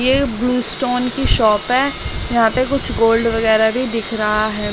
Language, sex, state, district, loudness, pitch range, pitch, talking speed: Hindi, female, Delhi, New Delhi, -15 LUFS, 220-255 Hz, 230 Hz, 190 wpm